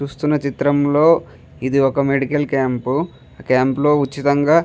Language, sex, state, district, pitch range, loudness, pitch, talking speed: Telugu, male, Andhra Pradesh, Chittoor, 135-150 Hz, -17 LUFS, 140 Hz, 130 wpm